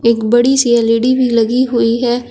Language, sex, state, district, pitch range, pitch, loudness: Hindi, male, Uttar Pradesh, Shamli, 230-245 Hz, 240 Hz, -12 LUFS